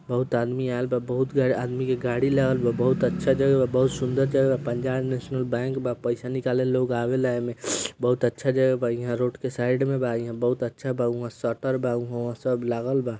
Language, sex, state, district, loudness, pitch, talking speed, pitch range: Bhojpuri, male, Bihar, East Champaran, -25 LUFS, 125 Hz, 205 wpm, 120-130 Hz